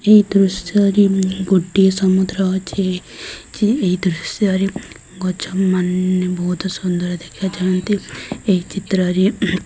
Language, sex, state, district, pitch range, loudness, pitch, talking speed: Odia, female, Odisha, Sambalpur, 185-195 Hz, -17 LUFS, 190 Hz, 110 wpm